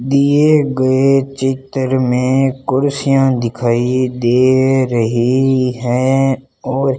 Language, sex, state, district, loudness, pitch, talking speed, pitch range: Hindi, male, Rajasthan, Bikaner, -14 LUFS, 130 Hz, 95 wpm, 125-135 Hz